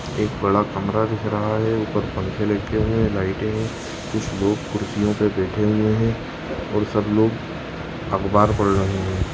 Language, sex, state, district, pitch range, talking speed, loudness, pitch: Bhojpuri, male, Uttar Pradesh, Gorakhpur, 100-110 Hz, 165 wpm, -22 LUFS, 105 Hz